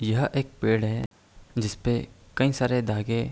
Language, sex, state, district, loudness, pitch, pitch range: Hindi, male, Uttar Pradesh, Gorakhpur, -27 LUFS, 115 Hz, 110-125 Hz